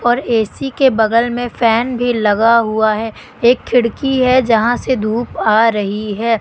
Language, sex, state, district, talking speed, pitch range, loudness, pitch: Hindi, female, Madhya Pradesh, Katni, 180 wpm, 220-245 Hz, -14 LUFS, 230 Hz